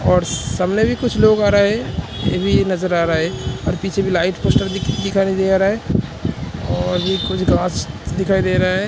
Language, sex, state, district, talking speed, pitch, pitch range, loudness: Hindi, male, Uttar Pradesh, Hamirpur, 210 wpm, 190 Hz, 180-195 Hz, -18 LUFS